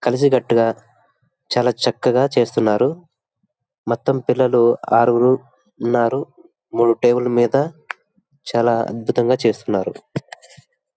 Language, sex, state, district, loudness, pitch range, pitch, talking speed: Telugu, male, Andhra Pradesh, Visakhapatnam, -18 LUFS, 120-135 Hz, 120 Hz, 95 wpm